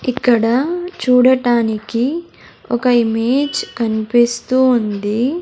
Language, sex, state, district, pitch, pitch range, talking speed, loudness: Telugu, male, Andhra Pradesh, Sri Satya Sai, 245 Hz, 230-260 Hz, 65 wpm, -16 LUFS